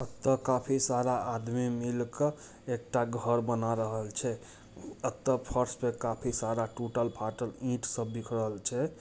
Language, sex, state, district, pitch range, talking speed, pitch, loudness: Hindi, male, Bihar, Muzaffarpur, 115-125 Hz, 155 wpm, 120 Hz, -32 LUFS